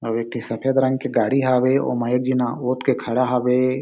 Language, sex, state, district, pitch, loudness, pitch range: Chhattisgarhi, male, Chhattisgarh, Sarguja, 125 Hz, -20 LUFS, 125-130 Hz